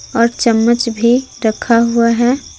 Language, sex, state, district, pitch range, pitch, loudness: Hindi, female, Jharkhand, Palamu, 230-240 Hz, 235 Hz, -13 LUFS